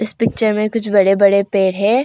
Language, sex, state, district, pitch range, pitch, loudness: Hindi, female, Arunachal Pradesh, Longding, 200-220 Hz, 210 Hz, -15 LUFS